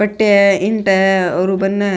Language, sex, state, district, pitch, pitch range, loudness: Rajasthani, male, Rajasthan, Nagaur, 195 Hz, 190-205 Hz, -14 LUFS